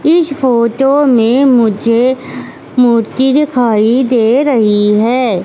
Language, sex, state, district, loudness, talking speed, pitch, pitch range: Hindi, female, Madhya Pradesh, Katni, -11 LUFS, 100 wpm, 245 Hz, 230-265 Hz